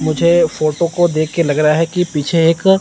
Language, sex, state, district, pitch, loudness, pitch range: Hindi, male, Chandigarh, Chandigarh, 165 Hz, -14 LUFS, 155-170 Hz